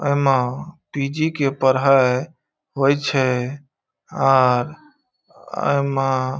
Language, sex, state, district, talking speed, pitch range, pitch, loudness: Maithili, male, Bihar, Saharsa, 95 wpm, 130-145 Hz, 135 Hz, -19 LUFS